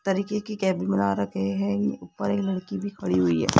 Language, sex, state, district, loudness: Hindi, female, Rajasthan, Jaipur, -26 LUFS